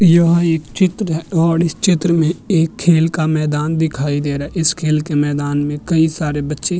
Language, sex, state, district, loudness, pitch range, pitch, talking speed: Hindi, male, Maharashtra, Chandrapur, -16 LUFS, 150-170 Hz, 160 Hz, 220 wpm